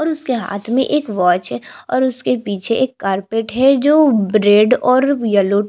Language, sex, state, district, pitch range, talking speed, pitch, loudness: Hindi, female, Chhattisgarh, Jashpur, 205-260 Hz, 150 wpm, 230 Hz, -15 LUFS